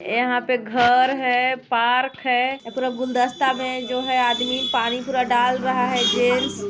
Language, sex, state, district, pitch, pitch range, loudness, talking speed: Hindi, female, Chhattisgarh, Sarguja, 250 Hz, 245-255 Hz, -20 LUFS, 180 wpm